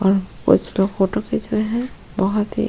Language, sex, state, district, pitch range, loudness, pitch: Hindi, female, Goa, North and South Goa, 195-215 Hz, -20 LUFS, 195 Hz